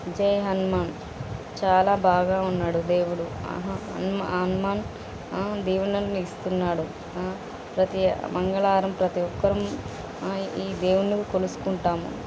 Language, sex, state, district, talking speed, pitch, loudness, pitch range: Telugu, female, Telangana, Nalgonda, 105 wpm, 185 Hz, -26 LUFS, 175-195 Hz